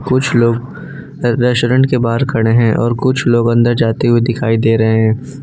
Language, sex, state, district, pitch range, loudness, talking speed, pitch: Hindi, male, Gujarat, Valsad, 115-125 Hz, -13 LUFS, 190 wpm, 120 Hz